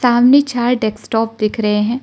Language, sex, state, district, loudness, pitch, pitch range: Hindi, female, Arunachal Pradesh, Lower Dibang Valley, -15 LUFS, 230 Hz, 215-245 Hz